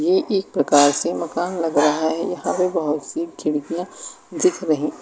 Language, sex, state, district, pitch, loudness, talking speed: Hindi, female, Uttar Pradesh, Lucknow, 170 Hz, -20 LUFS, 180 wpm